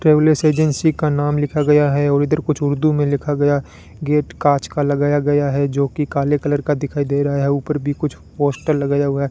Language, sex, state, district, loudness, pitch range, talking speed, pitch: Hindi, male, Rajasthan, Bikaner, -18 LUFS, 140-150 Hz, 230 wpm, 145 Hz